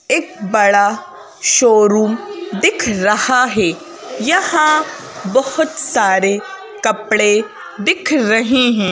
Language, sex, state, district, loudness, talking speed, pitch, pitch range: Hindi, female, Madhya Pradesh, Bhopal, -14 LUFS, 85 wpm, 235 Hz, 210-310 Hz